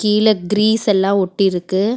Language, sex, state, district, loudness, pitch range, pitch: Tamil, female, Tamil Nadu, Chennai, -16 LUFS, 195-215 Hz, 205 Hz